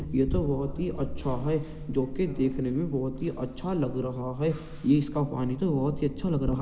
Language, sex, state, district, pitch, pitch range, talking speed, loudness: Hindi, male, Uttar Pradesh, Jyotiba Phule Nagar, 140 Hz, 130-155 Hz, 235 wpm, -29 LUFS